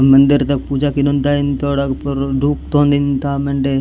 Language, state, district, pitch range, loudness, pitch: Gondi, Chhattisgarh, Sukma, 135-145 Hz, -16 LUFS, 140 Hz